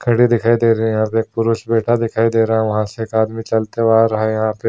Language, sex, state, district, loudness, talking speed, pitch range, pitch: Hindi, male, Bihar, East Champaran, -16 LUFS, 320 wpm, 110-115 Hz, 115 Hz